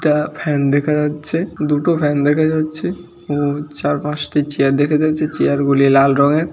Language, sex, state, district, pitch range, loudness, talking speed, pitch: Bengali, male, West Bengal, Dakshin Dinajpur, 145-155 Hz, -16 LUFS, 165 wpm, 150 Hz